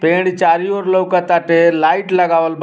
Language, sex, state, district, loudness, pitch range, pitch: Bhojpuri, male, Uttar Pradesh, Ghazipur, -14 LUFS, 165-185 Hz, 175 Hz